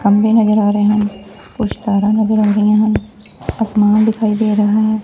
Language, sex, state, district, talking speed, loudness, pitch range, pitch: Punjabi, female, Punjab, Fazilka, 190 wpm, -14 LUFS, 205-215 Hz, 210 Hz